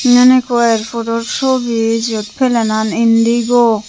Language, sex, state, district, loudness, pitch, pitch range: Chakma, female, Tripura, Unakoti, -13 LUFS, 230 Hz, 225-245 Hz